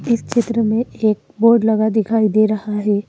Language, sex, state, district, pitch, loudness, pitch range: Hindi, female, Madhya Pradesh, Bhopal, 220 Hz, -16 LUFS, 215-230 Hz